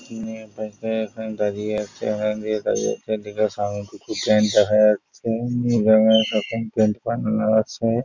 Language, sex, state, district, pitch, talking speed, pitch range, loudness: Bengali, male, West Bengal, Purulia, 110 Hz, 105 wpm, 105-110 Hz, -21 LUFS